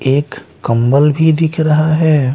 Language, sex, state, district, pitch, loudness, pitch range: Hindi, male, Bihar, Patna, 150 Hz, -13 LUFS, 135-160 Hz